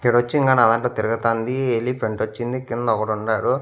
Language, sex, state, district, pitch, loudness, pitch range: Telugu, male, Andhra Pradesh, Annamaya, 120 Hz, -21 LUFS, 115-125 Hz